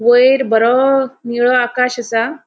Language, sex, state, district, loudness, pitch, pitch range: Konkani, female, Goa, North and South Goa, -14 LUFS, 250 Hz, 240-260 Hz